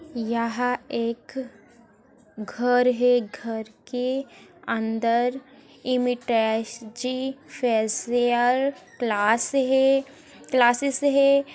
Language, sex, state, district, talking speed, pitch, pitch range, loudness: Hindi, female, Bihar, Gaya, 60 wpm, 245 Hz, 230-265 Hz, -24 LUFS